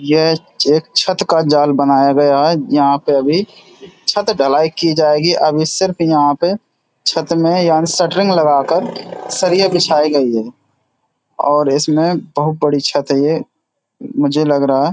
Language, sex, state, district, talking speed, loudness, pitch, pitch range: Hindi, male, Uttar Pradesh, Hamirpur, 160 wpm, -14 LUFS, 155 Hz, 140-165 Hz